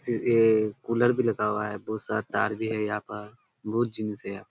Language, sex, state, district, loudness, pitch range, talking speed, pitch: Hindi, male, Bihar, Kishanganj, -27 LUFS, 105-115 Hz, 240 wpm, 110 Hz